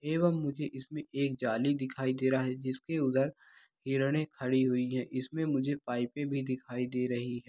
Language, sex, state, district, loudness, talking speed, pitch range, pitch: Hindi, male, Bihar, Saharsa, -33 LUFS, 185 wpm, 130-145 Hz, 130 Hz